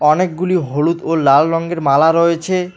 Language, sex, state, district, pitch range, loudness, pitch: Bengali, male, West Bengal, Alipurduar, 155-180 Hz, -15 LUFS, 165 Hz